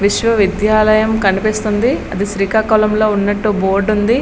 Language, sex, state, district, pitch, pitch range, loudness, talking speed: Telugu, female, Andhra Pradesh, Srikakulam, 215 Hz, 200-215 Hz, -14 LUFS, 115 wpm